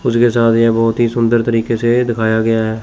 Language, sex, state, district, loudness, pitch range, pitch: Hindi, male, Chandigarh, Chandigarh, -14 LUFS, 115-120 Hz, 115 Hz